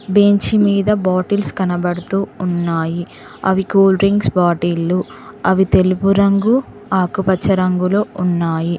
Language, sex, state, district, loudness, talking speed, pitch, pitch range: Telugu, female, Telangana, Mahabubabad, -16 LUFS, 95 wpm, 190 Hz, 175-200 Hz